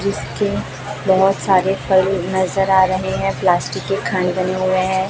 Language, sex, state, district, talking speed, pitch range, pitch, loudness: Hindi, male, Chhattisgarh, Raipur, 165 wpm, 185-195 Hz, 190 Hz, -17 LUFS